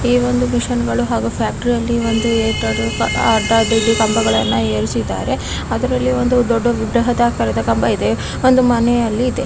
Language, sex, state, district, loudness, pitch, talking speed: Kannada, female, Karnataka, Bellary, -16 LUFS, 225 Hz, 135 wpm